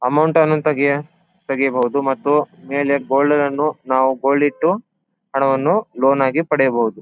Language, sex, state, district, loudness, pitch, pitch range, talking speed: Kannada, male, Karnataka, Bijapur, -17 LUFS, 140 Hz, 135-155 Hz, 130 wpm